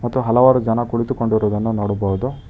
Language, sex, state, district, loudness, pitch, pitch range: Kannada, male, Karnataka, Bangalore, -18 LUFS, 115 Hz, 105-125 Hz